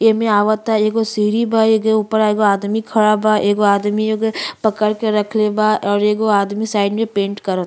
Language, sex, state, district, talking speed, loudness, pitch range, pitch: Bhojpuri, female, Uttar Pradesh, Ghazipur, 195 wpm, -16 LUFS, 205-220 Hz, 215 Hz